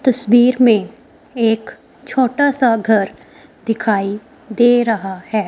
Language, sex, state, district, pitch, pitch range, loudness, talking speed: Hindi, female, Himachal Pradesh, Shimla, 230 Hz, 215-250 Hz, -15 LUFS, 110 wpm